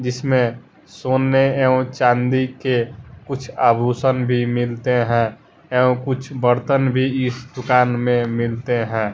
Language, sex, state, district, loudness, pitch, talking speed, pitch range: Hindi, male, Bihar, West Champaran, -19 LUFS, 125 Hz, 125 wpm, 120-130 Hz